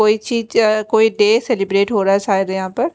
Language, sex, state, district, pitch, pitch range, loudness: Hindi, female, Chandigarh, Chandigarh, 215 Hz, 195-225 Hz, -16 LUFS